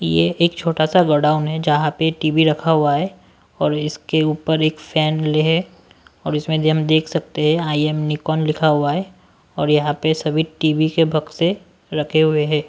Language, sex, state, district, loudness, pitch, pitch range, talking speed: Hindi, male, Maharashtra, Washim, -18 LUFS, 155 Hz, 150-160 Hz, 205 wpm